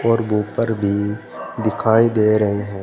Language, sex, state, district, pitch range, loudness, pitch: Hindi, male, Uttar Pradesh, Saharanpur, 105-110 Hz, -18 LUFS, 105 Hz